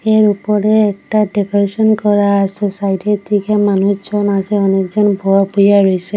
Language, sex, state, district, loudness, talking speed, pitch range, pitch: Bengali, female, Assam, Hailakandi, -13 LUFS, 145 wpm, 195-210 Hz, 205 Hz